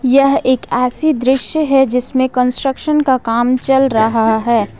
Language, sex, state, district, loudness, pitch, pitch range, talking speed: Hindi, female, Jharkhand, Ranchi, -14 LUFS, 260 Hz, 245-270 Hz, 150 wpm